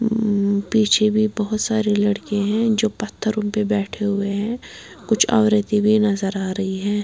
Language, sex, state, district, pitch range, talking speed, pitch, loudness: Hindi, female, Bihar, Patna, 200-215 Hz, 170 wpm, 210 Hz, -20 LUFS